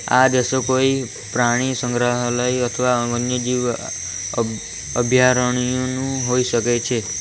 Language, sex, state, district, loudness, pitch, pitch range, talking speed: Gujarati, male, Gujarat, Valsad, -19 LUFS, 125 Hz, 120-125 Hz, 100 wpm